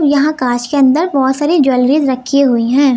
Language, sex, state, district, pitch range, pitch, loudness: Hindi, female, Uttar Pradesh, Lucknow, 260-290 Hz, 275 Hz, -12 LUFS